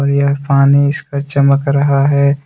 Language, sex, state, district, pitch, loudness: Hindi, male, Jharkhand, Deoghar, 140 Hz, -13 LUFS